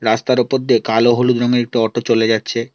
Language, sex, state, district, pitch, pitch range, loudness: Bengali, male, West Bengal, Alipurduar, 120 Hz, 115-125 Hz, -15 LUFS